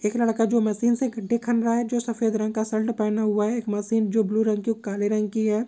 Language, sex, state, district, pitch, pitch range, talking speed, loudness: Marwari, female, Rajasthan, Nagaur, 220 Hz, 215-235 Hz, 295 wpm, -24 LUFS